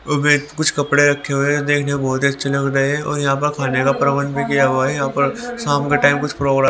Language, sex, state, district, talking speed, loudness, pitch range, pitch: Hindi, male, Haryana, Rohtak, 305 wpm, -17 LUFS, 140-145 Hz, 140 Hz